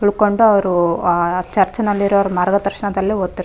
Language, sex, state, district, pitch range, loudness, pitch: Kannada, female, Karnataka, Raichur, 180-205 Hz, -16 LUFS, 200 Hz